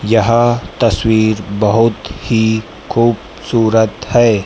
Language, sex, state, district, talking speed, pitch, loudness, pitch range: Hindi, male, Madhya Pradesh, Dhar, 80 wpm, 115 Hz, -14 LUFS, 110-115 Hz